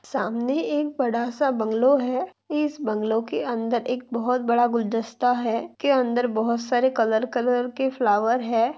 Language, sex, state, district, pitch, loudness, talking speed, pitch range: Hindi, female, Maharashtra, Nagpur, 240 Hz, -23 LUFS, 165 wpm, 230-255 Hz